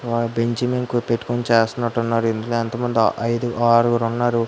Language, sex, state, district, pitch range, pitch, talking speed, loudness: Telugu, female, Andhra Pradesh, Guntur, 115-120 Hz, 115 Hz, 120 wpm, -20 LUFS